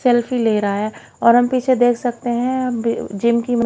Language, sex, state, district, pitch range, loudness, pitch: Hindi, female, Haryana, Jhajjar, 230-245 Hz, -18 LUFS, 240 Hz